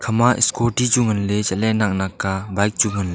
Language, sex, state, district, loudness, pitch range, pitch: Wancho, male, Arunachal Pradesh, Longding, -19 LUFS, 95-120 Hz, 105 Hz